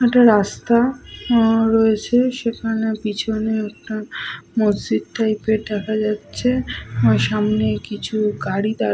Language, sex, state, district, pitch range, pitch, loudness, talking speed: Bengali, female, West Bengal, Paschim Medinipur, 210-230 Hz, 220 Hz, -19 LUFS, 120 wpm